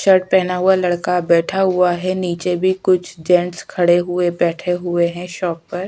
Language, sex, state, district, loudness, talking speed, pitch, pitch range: Hindi, female, Chhattisgarh, Sukma, -17 LUFS, 195 wpm, 180 Hz, 175-185 Hz